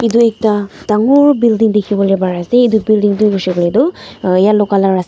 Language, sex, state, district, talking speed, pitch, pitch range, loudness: Nagamese, female, Nagaland, Dimapur, 175 wpm, 210 Hz, 195-230 Hz, -12 LUFS